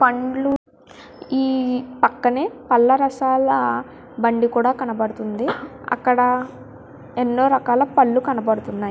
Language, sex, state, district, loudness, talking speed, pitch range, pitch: Telugu, female, Andhra Pradesh, Guntur, -20 LUFS, 85 wpm, 235-265 Hz, 250 Hz